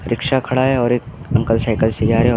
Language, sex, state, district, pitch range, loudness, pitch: Hindi, male, Uttar Pradesh, Lucknow, 115-130 Hz, -17 LUFS, 120 Hz